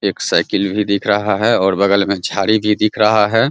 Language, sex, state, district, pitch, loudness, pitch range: Hindi, male, Bihar, Araria, 100 Hz, -15 LUFS, 100-105 Hz